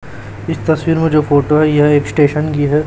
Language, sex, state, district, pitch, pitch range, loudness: Hindi, male, Chhattisgarh, Raipur, 150 Hz, 145-155 Hz, -13 LUFS